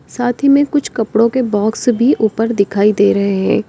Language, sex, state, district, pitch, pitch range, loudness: Hindi, female, Uttar Pradesh, Lalitpur, 225 Hz, 205-245 Hz, -14 LUFS